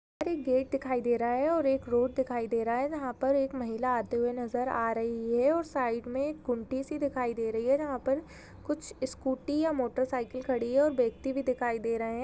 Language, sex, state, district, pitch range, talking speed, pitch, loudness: Hindi, female, Chhattisgarh, Raigarh, 240-275 Hz, 230 wpm, 255 Hz, -31 LUFS